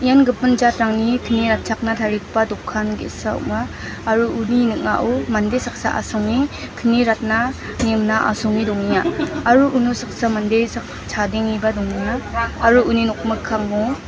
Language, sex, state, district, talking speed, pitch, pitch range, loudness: Garo, female, Meghalaya, West Garo Hills, 130 wpm, 225 Hz, 220-240 Hz, -19 LUFS